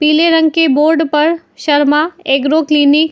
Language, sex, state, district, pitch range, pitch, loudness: Hindi, female, Uttar Pradesh, Jyotiba Phule Nagar, 295-320 Hz, 305 Hz, -12 LUFS